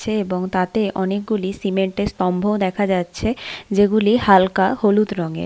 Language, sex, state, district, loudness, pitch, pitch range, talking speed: Bengali, female, West Bengal, Paschim Medinipur, -19 LUFS, 200 Hz, 190-210 Hz, 165 wpm